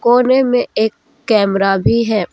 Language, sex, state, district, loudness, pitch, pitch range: Hindi, female, Jharkhand, Deoghar, -14 LUFS, 230 Hz, 210-250 Hz